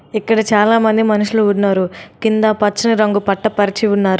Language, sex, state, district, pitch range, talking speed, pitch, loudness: Telugu, female, Telangana, Adilabad, 205-220 Hz, 145 wpm, 215 Hz, -15 LUFS